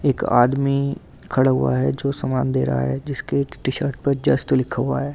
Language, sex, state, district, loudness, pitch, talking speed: Hindi, male, Delhi, New Delhi, -20 LUFS, 130 Hz, 220 wpm